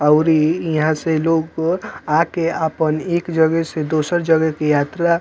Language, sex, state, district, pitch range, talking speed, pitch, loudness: Bhojpuri, male, Bihar, Muzaffarpur, 155-165 Hz, 175 wpm, 160 Hz, -18 LUFS